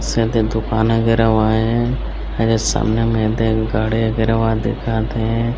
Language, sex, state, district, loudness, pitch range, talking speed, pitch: Chhattisgarhi, male, Chhattisgarh, Bilaspur, -17 LUFS, 110-115 Hz, 160 wpm, 115 Hz